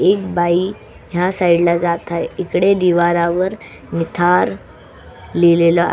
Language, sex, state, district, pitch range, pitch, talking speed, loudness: Marathi, female, Maharashtra, Solapur, 170-180 Hz, 175 Hz, 120 wpm, -16 LUFS